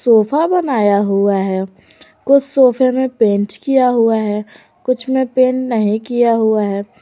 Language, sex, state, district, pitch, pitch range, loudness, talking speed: Hindi, female, Jharkhand, Garhwa, 230 Hz, 210-255 Hz, -14 LUFS, 155 wpm